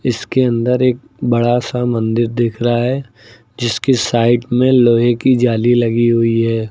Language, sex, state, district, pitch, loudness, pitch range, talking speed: Hindi, male, Uttar Pradesh, Lucknow, 120 Hz, -15 LUFS, 115-125 Hz, 160 wpm